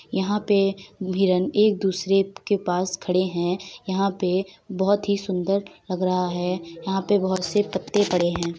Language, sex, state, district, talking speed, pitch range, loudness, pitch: Hindi, female, Uttar Pradesh, Varanasi, 170 wpm, 180-200 Hz, -23 LUFS, 190 Hz